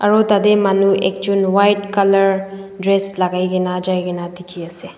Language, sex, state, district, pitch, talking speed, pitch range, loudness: Nagamese, female, Nagaland, Dimapur, 195 Hz, 155 wpm, 185-200 Hz, -16 LUFS